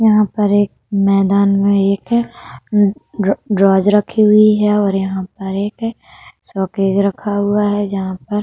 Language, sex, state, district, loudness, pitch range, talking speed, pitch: Hindi, female, Uttar Pradesh, Budaun, -15 LUFS, 195-210 Hz, 150 wpm, 200 Hz